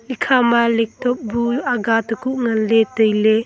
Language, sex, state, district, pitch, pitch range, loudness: Wancho, female, Arunachal Pradesh, Longding, 230 Hz, 225-245 Hz, -17 LUFS